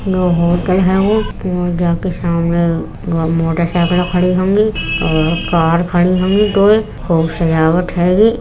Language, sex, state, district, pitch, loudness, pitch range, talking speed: Hindi, female, Uttar Pradesh, Etah, 175 Hz, -14 LUFS, 170-185 Hz, 130 wpm